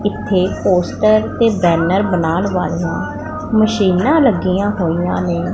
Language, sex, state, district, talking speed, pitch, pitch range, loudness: Punjabi, female, Punjab, Pathankot, 110 wpm, 190 Hz, 180-210 Hz, -15 LUFS